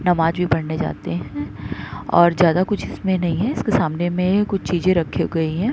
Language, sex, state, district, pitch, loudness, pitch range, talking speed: Hindi, female, Uttar Pradesh, Muzaffarnagar, 175 Hz, -20 LUFS, 165-185 Hz, 210 wpm